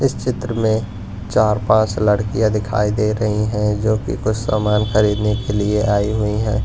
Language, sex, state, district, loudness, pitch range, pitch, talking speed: Hindi, male, Punjab, Pathankot, -18 LUFS, 105-110 Hz, 105 Hz, 180 wpm